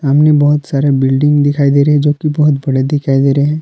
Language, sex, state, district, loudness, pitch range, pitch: Hindi, male, Jharkhand, Palamu, -12 LUFS, 140-150 Hz, 145 Hz